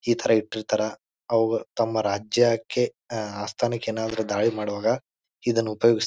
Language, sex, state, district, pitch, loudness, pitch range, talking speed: Kannada, male, Karnataka, Bijapur, 110 Hz, -25 LUFS, 110-115 Hz, 140 wpm